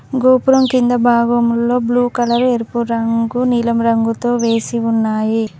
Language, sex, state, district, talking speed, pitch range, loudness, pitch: Telugu, female, Telangana, Mahabubabad, 120 wpm, 230-245 Hz, -15 LUFS, 235 Hz